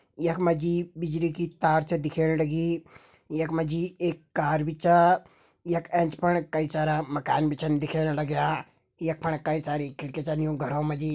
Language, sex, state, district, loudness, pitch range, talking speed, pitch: Garhwali, male, Uttarakhand, Tehri Garhwal, -27 LUFS, 155-170 Hz, 195 wpm, 160 Hz